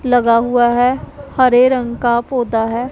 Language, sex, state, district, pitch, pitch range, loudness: Hindi, female, Punjab, Pathankot, 245 Hz, 235-255 Hz, -14 LUFS